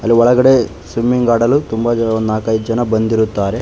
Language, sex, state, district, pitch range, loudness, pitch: Kannada, male, Karnataka, Bangalore, 110-120 Hz, -14 LUFS, 115 Hz